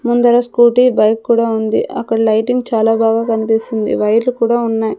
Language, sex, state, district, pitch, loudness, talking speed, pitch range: Telugu, female, Andhra Pradesh, Sri Satya Sai, 225 Hz, -14 LUFS, 155 wpm, 225-240 Hz